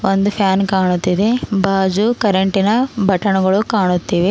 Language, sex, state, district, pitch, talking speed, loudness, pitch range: Kannada, female, Karnataka, Bidar, 195 Hz, 95 wpm, -16 LUFS, 190-205 Hz